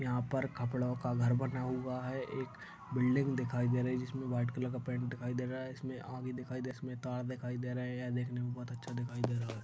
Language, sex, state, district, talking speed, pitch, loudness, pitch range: Hindi, male, Maharashtra, Aurangabad, 250 wpm, 125 Hz, -37 LUFS, 125-130 Hz